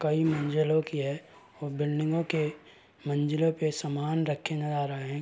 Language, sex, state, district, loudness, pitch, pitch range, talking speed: Hindi, male, Uttar Pradesh, Varanasi, -30 LUFS, 150 Hz, 145-155 Hz, 160 wpm